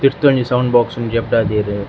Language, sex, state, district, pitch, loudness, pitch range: Tulu, male, Karnataka, Dakshina Kannada, 120 Hz, -16 LUFS, 115-125 Hz